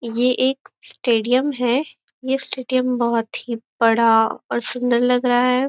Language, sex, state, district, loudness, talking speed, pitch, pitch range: Hindi, female, Maharashtra, Nagpur, -20 LUFS, 145 wpm, 250 Hz, 235-255 Hz